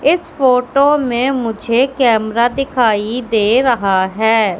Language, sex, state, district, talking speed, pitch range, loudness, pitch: Hindi, female, Madhya Pradesh, Katni, 115 wpm, 220-265 Hz, -14 LUFS, 245 Hz